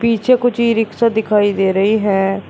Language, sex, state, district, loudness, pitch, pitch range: Hindi, male, Uttar Pradesh, Shamli, -15 LUFS, 220 Hz, 200-230 Hz